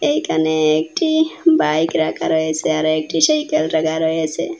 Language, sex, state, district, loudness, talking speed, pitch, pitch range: Bengali, female, Assam, Hailakandi, -17 LUFS, 145 wpm, 160 Hz, 155-170 Hz